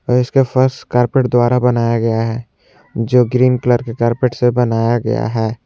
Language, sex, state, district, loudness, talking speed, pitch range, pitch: Hindi, male, Jharkhand, Ranchi, -15 LUFS, 170 wpm, 115-125 Hz, 120 Hz